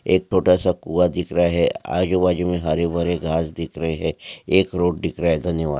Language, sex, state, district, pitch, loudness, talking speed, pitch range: Hindi, male, Maharashtra, Aurangabad, 85 Hz, -20 LUFS, 195 wpm, 80-90 Hz